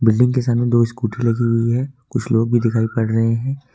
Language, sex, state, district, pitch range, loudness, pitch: Hindi, male, Jharkhand, Ranchi, 115-125 Hz, -18 LUFS, 115 Hz